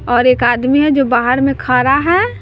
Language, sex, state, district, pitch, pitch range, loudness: Hindi, female, Bihar, West Champaran, 255 Hz, 245-275 Hz, -12 LUFS